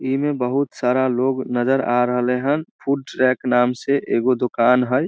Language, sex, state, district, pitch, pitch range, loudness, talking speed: Maithili, male, Bihar, Samastipur, 130 Hz, 125-135 Hz, -20 LUFS, 200 wpm